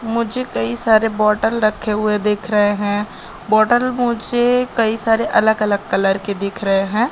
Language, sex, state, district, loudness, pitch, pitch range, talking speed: Hindi, female, Madhya Pradesh, Katni, -17 LUFS, 215 Hz, 205-235 Hz, 170 wpm